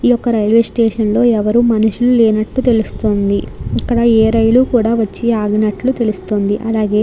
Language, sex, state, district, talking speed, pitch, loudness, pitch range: Telugu, female, Andhra Pradesh, Krishna, 155 wpm, 225 Hz, -14 LUFS, 215-235 Hz